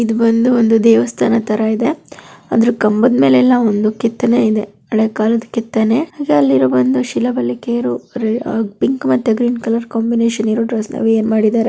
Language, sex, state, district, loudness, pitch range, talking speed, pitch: Kannada, female, Karnataka, Dharwad, -15 LUFS, 210-230 Hz, 125 wpm, 225 Hz